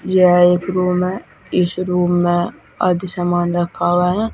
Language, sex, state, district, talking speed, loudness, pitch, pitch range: Hindi, female, Uttar Pradesh, Saharanpur, 165 wpm, -17 LUFS, 180 Hz, 175-185 Hz